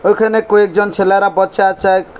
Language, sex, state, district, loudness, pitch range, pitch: Bengali, male, Tripura, West Tripura, -12 LUFS, 195-210 Hz, 200 Hz